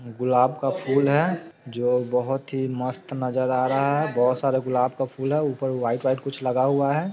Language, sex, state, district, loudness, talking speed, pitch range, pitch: Hindi, male, Bihar, Sitamarhi, -24 LUFS, 210 wpm, 125-140 Hz, 130 Hz